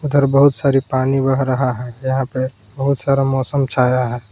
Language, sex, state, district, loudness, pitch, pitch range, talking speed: Hindi, male, Jharkhand, Palamu, -17 LUFS, 135 Hz, 125-140 Hz, 195 wpm